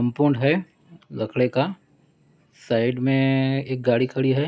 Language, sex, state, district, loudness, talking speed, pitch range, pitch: Hindi, male, Maharashtra, Nagpur, -22 LUFS, 135 wpm, 125-145 Hz, 135 Hz